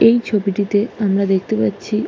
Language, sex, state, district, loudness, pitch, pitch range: Bengali, female, West Bengal, Jalpaiguri, -18 LUFS, 205 Hz, 195-215 Hz